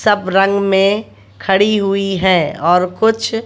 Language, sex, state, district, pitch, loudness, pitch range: Hindi, female, Bihar, West Champaran, 195 Hz, -14 LUFS, 185-205 Hz